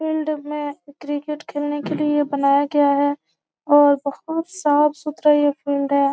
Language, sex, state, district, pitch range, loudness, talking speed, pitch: Hindi, female, Bihar, Gopalganj, 285-300 Hz, -20 LUFS, 155 wpm, 290 Hz